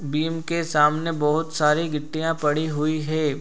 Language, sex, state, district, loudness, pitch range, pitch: Hindi, male, Bihar, Supaul, -23 LUFS, 150-160 Hz, 155 Hz